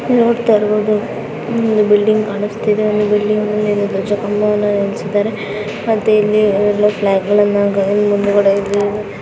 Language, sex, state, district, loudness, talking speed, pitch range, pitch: Kannada, female, Karnataka, Raichur, -15 LUFS, 85 wpm, 205-215 Hz, 210 Hz